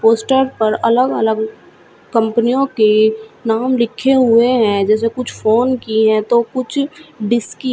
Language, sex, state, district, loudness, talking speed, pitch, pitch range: Hindi, female, Uttar Pradesh, Shamli, -15 LUFS, 150 wpm, 235 Hz, 220-255 Hz